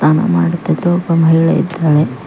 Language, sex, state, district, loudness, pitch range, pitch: Kannada, female, Karnataka, Koppal, -13 LUFS, 155-170 Hz, 165 Hz